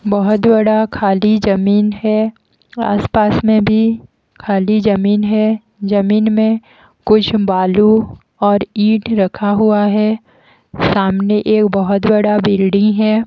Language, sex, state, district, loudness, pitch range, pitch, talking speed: Hindi, female, Haryana, Jhajjar, -14 LUFS, 205-220 Hz, 210 Hz, 120 wpm